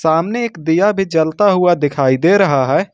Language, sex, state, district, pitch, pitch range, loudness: Hindi, male, Jharkhand, Ranchi, 165 Hz, 155-200 Hz, -14 LUFS